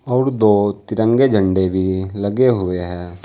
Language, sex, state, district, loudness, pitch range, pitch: Hindi, male, Uttar Pradesh, Saharanpur, -17 LUFS, 95-115 Hz, 100 Hz